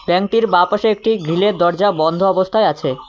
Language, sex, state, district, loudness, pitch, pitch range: Bengali, male, West Bengal, Cooch Behar, -15 LUFS, 195 Hz, 175-215 Hz